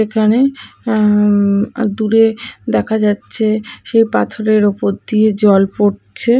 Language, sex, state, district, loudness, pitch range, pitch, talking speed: Bengali, female, Odisha, Malkangiri, -14 LUFS, 205-225 Hz, 215 Hz, 110 wpm